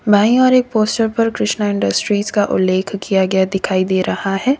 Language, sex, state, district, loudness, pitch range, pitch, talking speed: Hindi, female, Uttar Pradesh, Lalitpur, -16 LUFS, 190-225 Hz, 205 Hz, 195 wpm